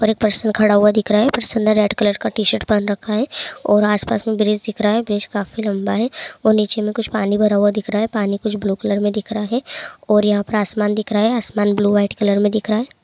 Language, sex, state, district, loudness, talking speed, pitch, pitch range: Hindi, female, Bihar, Bhagalpur, -18 LUFS, 285 wpm, 210 Hz, 205-220 Hz